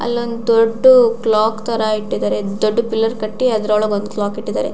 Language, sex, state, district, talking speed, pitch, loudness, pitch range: Kannada, female, Karnataka, Shimoga, 175 wpm, 220 Hz, -16 LUFS, 210-230 Hz